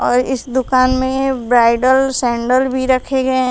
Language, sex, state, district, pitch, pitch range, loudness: Hindi, female, Uttar Pradesh, Shamli, 260 Hz, 250-260 Hz, -15 LUFS